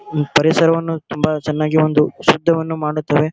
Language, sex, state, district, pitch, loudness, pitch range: Kannada, male, Karnataka, Gulbarga, 155 Hz, -16 LUFS, 150-165 Hz